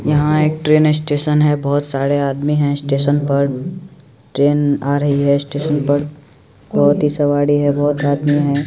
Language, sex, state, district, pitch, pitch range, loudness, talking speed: Maithili, male, Bihar, Supaul, 145 Hz, 140-150 Hz, -16 LUFS, 165 wpm